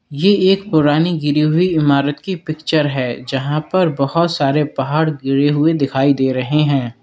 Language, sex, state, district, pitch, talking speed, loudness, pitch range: Hindi, male, Uttar Pradesh, Lalitpur, 150 Hz, 170 wpm, -16 LUFS, 140-160 Hz